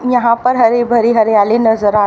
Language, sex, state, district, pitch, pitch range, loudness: Hindi, female, Haryana, Rohtak, 230 Hz, 220-240 Hz, -12 LUFS